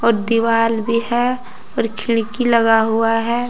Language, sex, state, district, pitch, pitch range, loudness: Hindi, female, Jharkhand, Deoghar, 230 Hz, 225-240 Hz, -17 LUFS